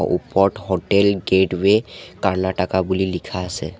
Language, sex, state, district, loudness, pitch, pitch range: Assamese, male, Assam, Sonitpur, -19 LUFS, 95 Hz, 90-100 Hz